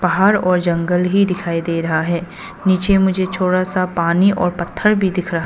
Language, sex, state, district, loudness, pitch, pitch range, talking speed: Hindi, female, Arunachal Pradesh, Papum Pare, -16 LUFS, 180 Hz, 170-190 Hz, 200 wpm